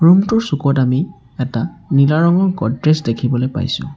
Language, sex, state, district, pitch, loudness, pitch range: Assamese, male, Assam, Sonitpur, 140 Hz, -16 LUFS, 125-170 Hz